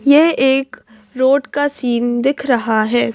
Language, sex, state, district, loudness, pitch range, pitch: Hindi, female, Madhya Pradesh, Bhopal, -15 LUFS, 235-275 Hz, 255 Hz